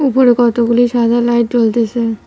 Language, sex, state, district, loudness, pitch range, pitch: Bengali, female, West Bengal, Cooch Behar, -13 LUFS, 235-245 Hz, 235 Hz